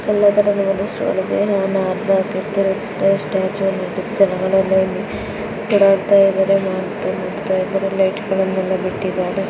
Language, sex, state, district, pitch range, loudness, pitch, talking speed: Kannada, female, Karnataka, Dakshina Kannada, 190-200 Hz, -18 LUFS, 195 Hz, 55 wpm